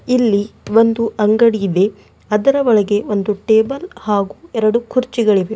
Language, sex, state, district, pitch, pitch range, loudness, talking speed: Kannada, female, Karnataka, Bidar, 220 Hz, 205-235 Hz, -16 LUFS, 95 wpm